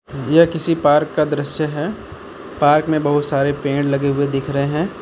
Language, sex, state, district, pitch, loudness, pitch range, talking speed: Hindi, male, Uttar Pradesh, Lucknow, 145 Hz, -17 LUFS, 140-155 Hz, 190 wpm